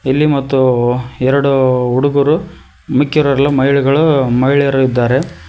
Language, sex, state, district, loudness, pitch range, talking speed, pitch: Kannada, male, Karnataka, Koppal, -13 LUFS, 130-140 Hz, 85 wpm, 135 Hz